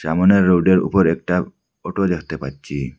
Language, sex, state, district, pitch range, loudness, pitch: Bengali, male, Assam, Hailakandi, 70-95 Hz, -18 LUFS, 85 Hz